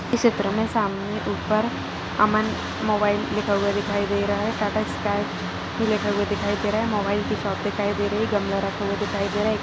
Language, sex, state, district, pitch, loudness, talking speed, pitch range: Hindi, female, Chhattisgarh, Bastar, 205 Hz, -24 LUFS, 220 wpm, 205-215 Hz